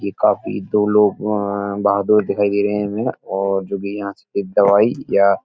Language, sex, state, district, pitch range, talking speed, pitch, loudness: Hindi, male, Uttar Pradesh, Etah, 100-105 Hz, 220 wpm, 100 Hz, -18 LUFS